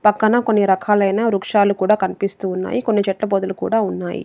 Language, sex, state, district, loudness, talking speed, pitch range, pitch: Telugu, female, Telangana, Adilabad, -18 LUFS, 170 wpm, 195-215 Hz, 205 Hz